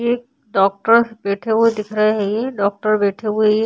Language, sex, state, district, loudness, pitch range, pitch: Hindi, female, Uttar Pradesh, Hamirpur, -18 LUFS, 205-230 Hz, 215 Hz